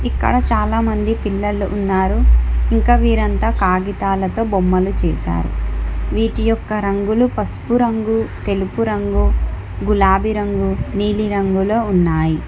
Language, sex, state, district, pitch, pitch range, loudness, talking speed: Telugu, female, Telangana, Hyderabad, 200 Hz, 175-220 Hz, -17 LUFS, 105 wpm